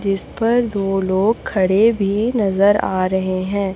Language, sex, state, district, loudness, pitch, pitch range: Hindi, female, Chhattisgarh, Raipur, -17 LUFS, 195 Hz, 190-215 Hz